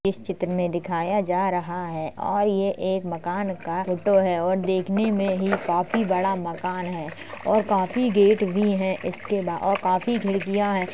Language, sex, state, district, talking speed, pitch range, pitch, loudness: Hindi, male, Uttar Pradesh, Jalaun, 180 wpm, 180-200 Hz, 190 Hz, -24 LUFS